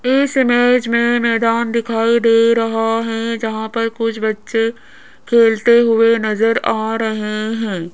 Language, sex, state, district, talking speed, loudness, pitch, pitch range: Hindi, female, Rajasthan, Jaipur, 135 wpm, -15 LUFS, 230 Hz, 225-235 Hz